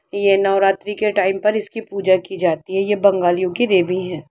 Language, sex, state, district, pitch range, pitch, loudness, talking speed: Hindi, female, Jharkhand, Jamtara, 185-205 Hz, 195 Hz, -18 LUFS, 195 wpm